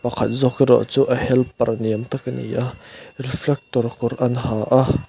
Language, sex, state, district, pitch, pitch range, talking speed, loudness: Mizo, male, Mizoram, Aizawl, 125 Hz, 120-130 Hz, 200 wpm, -20 LUFS